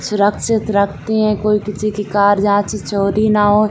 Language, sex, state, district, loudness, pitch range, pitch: Hindi, female, Bihar, Saran, -16 LUFS, 205-215 Hz, 210 Hz